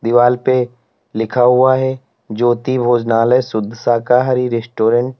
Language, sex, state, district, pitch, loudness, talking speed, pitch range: Hindi, male, Uttar Pradesh, Lalitpur, 120 Hz, -15 LUFS, 115 wpm, 115-125 Hz